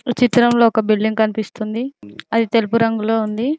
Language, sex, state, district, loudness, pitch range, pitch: Telugu, female, Telangana, Mahabubabad, -17 LUFS, 220-240 Hz, 225 Hz